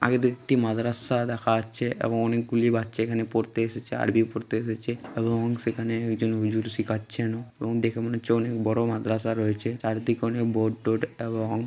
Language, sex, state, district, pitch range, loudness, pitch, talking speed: Bengali, male, West Bengal, Malda, 110-115 Hz, -27 LUFS, 115 Hz, 160 wpm